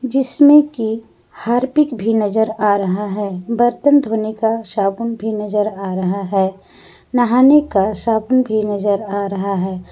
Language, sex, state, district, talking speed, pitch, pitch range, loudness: Hindi, female, Jharkhand, Garhwa, 150 wpm, 220 Hz, 200-240 Hz, -16 LUFS